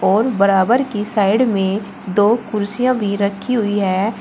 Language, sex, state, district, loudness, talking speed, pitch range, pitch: Hindi, female, Uttar Pradesh, Shamli, -17 LUFS, 155 wpm, 200-225 Hz, 205 Hz